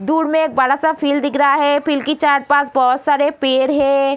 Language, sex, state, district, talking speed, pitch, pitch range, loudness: Hindi, female, Bihar, Gopalganj, 260 wpm, 285 Hz, 275-295 Hz, -15 LUFS